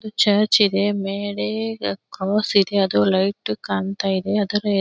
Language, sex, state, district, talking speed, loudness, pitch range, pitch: Kannada, female, Karnataka, Belgaum, 125 wpm, -20 LUFS, 185-205 Hz, 195 Hz